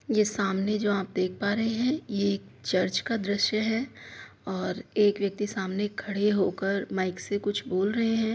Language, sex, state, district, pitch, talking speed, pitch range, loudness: Hindi, female, Uttar Pradesh, Hamirpur, 205 Hz, 185 wpm, 195-215 Hz, -28 LUFS